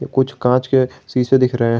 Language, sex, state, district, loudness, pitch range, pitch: Hindi, male, Jharkhand, Garhwa, -17 LUFS, 125-130 Hz, 125 Hz